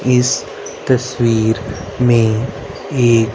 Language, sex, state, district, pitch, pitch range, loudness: Hindi, male, Haryana, Rohtak, 120 Hz, 110-130 Hz, -16 LUFS